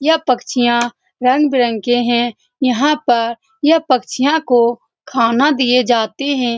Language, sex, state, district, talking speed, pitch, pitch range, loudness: Hindi, female, Bihar, Saran, 125 wpm, 250 Hz, 240-285 Hz, -15 LUFS